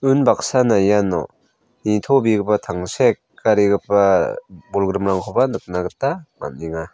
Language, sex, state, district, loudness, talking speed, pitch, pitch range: Garo, male, Meghalaya, South Garo Hills, -18 LUFS, 70 wpm, 100 Hz, 95-110 Hz